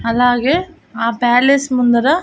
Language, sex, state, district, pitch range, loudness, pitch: Telugu, female, Andhra Pradesh, Annamaya, 240-280 Hz, -14 LUFS, 245 Hz